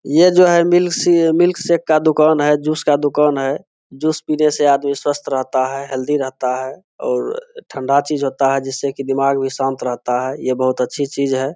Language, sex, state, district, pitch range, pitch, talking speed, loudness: Hindi, male, Bihar, Saharsa, 135-155 Hz, 140 Hz, 210 wpm, -17 LUFS